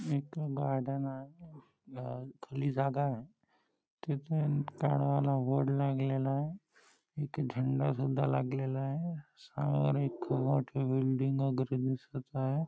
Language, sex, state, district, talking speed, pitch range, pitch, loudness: Marathi, male, Maharashtra, Nagpur, 120 wpm, 130-145 Hz, 135 Hz, -34 LUFS